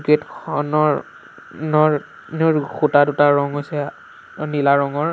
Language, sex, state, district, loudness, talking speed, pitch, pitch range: Assamese, male, Assam, Sonitpur, -18 LUFS, 105 wpm, 150 Hz, 145-155 Hz